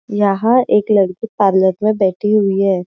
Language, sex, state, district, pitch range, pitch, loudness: Hindi, female, Maharashtra, Aurangabad, 190-215 Hz, 200 Hz, -14 LUFS